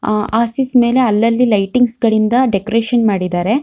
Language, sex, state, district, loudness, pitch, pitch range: Kannada, female, Karnataka, Shimoga, -14 LUFS, 230 Hz, 215-245 Hz